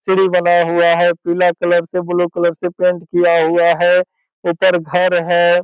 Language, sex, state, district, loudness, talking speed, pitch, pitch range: Hindi, male, Bihar, Purnia, -14 LUFS, 180 wpm, 175 Hz, 170-180 Hz